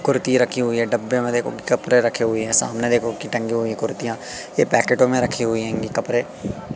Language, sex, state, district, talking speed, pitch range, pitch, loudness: Hindi, male, Madhya Pradesh, Katni, 215 wpm, 115-125 Hz, 120 Hz, -20 LUFS